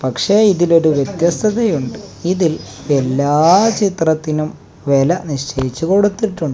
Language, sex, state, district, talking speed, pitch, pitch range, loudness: Malayalam, male, Kerala, Kasaragod, 85 wpm, 155 Hz, 140-190 Hz, -15 LUFS